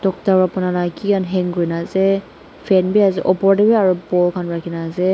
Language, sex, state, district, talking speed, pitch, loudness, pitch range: Nagamese, female, Nagaland, Dimapur, 150 wpm, 185 Hz, -17 LUFS, 175-195 Hz